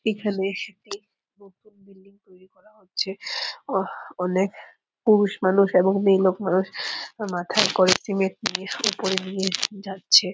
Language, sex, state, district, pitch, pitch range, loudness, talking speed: Bengali, female, West Bengal, Purulia, 195 Hz, 190-210 Hz, -23 LUFS, 120 wpm